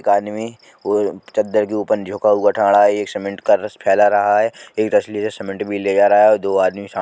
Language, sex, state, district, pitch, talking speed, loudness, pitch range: Bundeli, male, Uttar Pradesh, Jalaun, 105 Hz, 220 wpm, -17 LUFS, 100-105 Hz